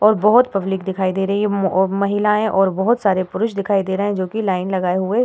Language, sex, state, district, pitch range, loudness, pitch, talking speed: Hindi, female, Uttar Pradesh, Hamirpur, 190-210 Hz, -18 LUFS, 195 Hz, 250 wpm